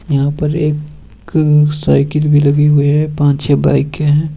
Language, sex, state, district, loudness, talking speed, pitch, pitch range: Hindi, male, Bihar, Bhagalpur, -13 LUFS, 150 wpm, 150 Hz, 145-150 Hz